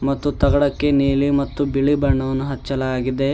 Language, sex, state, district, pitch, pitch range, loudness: Kannada, male, Karnataka, Bidar, 140 Hz, 135-140 Hz, -19 LUFS